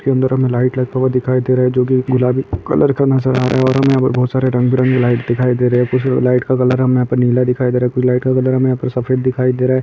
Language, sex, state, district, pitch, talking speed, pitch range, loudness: Hindi, male, Chhattisgarh, Bastar, 130 Hz, 310 wpm, 125-130 Hz, -14 LUFS